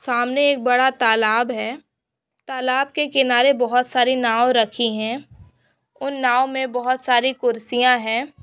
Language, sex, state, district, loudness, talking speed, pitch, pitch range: Hindi, female, Maharashtra, Pune, -19 LUFS, 140 wpm, 250 Hz, 240-265 Hz